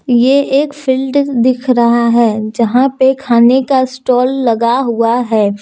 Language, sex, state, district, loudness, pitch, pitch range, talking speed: Hindi, female, Jharkhand, Deoghar, -12 LUFS, 250 Hz, 235-265 Hz, 150 wpm